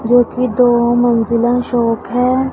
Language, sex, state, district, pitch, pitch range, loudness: Hindi, female, Punjab, Pathankot, 240 Hz, 235-245 Hz, -14 LUFS